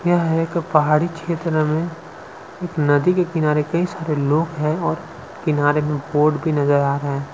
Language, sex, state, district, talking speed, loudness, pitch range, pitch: Hindi, male, Chhattisgarh, Sukma, 170 wpm, -20 LUFS, 150-165 Hz, 155 Hz